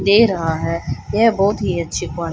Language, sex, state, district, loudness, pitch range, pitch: Hindi, female, Haryana, Rohtak, -18 LUFS, 165-205 Hz, 170 Hz